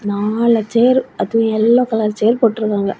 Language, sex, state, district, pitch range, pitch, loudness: Tamil, female, Tamil Nadu, Kanyakumari, 210-235 Hz, 225 Hz, -15 LUFS